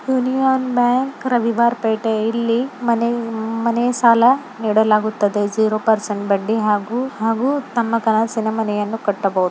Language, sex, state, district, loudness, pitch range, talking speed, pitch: Kannada, female, Karnataka, Belgaum, -18 LUFS, 215-245 Hz, 95 wpm, 225 Hz